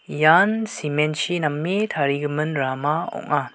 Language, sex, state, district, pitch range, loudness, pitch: Garo, male, Meghalaya, West Garo Hills, 145-175 Hz, -21 LUFS, 155 Hz